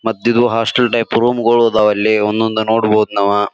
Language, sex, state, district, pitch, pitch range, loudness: Kannada, male, Karnataka, Bijapur, 110 Hz, 105-115 Hz, -14 LUFS